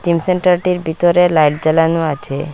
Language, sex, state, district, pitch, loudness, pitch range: Bengali, female, Assam, Hailakandi, 165 Hz, -14 LUFS, 155-175 Hz